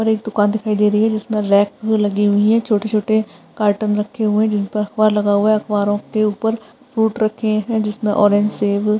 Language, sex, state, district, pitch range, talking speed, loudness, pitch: Hindi, female, Uttar Pradesh, Varanasi, 205-220 Hz, 220 wpm, -17 LUFS, 215 Hz